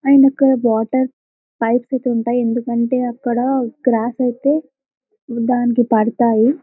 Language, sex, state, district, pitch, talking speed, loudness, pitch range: Telugu, female, Telangana, Karimnagar, 245 Hz, 110 wpm, -17 LUFS, 235-270 Hz